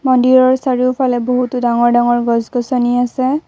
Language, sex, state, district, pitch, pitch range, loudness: Assamese, female, Assam, Kamrup Metropolitan, 250 Hz, 240-255 Hz, -14 LUFS